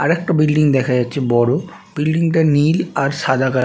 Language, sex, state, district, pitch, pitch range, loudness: Bengali, male, West Bengal, Jhargram, 145 Hz, 130-160 Hz, -16 LUFS